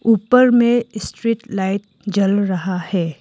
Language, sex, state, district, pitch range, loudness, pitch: Hindi, female, Arunachal Pradesh, Lower Dibang Valley, 190-230 Hz, -17 LUFS, 205 Hz